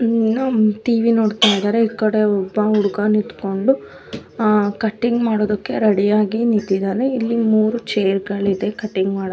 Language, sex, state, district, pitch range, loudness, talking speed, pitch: Kannada, female, Karnataka, Bellary, 205-230 Hz, -18 LUFS, 115 wpm, 215 Hz